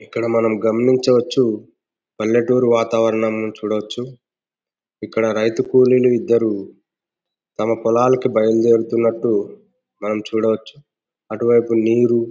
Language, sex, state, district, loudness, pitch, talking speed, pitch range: Telugu, male, Andhra Pradesh, Anantapur, -17 LUFS, 115 Hz, 85 wpm, 110-120 Hz